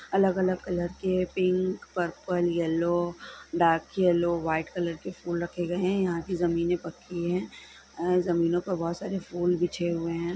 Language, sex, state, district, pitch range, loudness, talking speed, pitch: Hindi, female, Bihar, Sitamarhi, 170-185 Hz, -28 LUFS, 185 wpm, 175 Hz